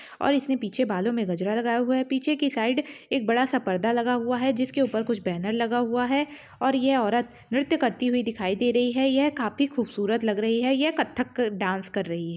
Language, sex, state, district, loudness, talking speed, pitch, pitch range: Hindi, female, Chhattisgarh, Rajnandgaon, -25 LUFS, 245 wpm, 245 Hz, 225-265 Hz